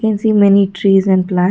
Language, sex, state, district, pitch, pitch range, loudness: English, female, Karnataka, Bangalore, 195 Hz, 190-205 Hz, -12 LUFS